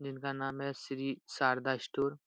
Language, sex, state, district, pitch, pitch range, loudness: Hindi, male, Bihar, Jahanabad, 135 Hz, 135-140 Hz, -36 LUFS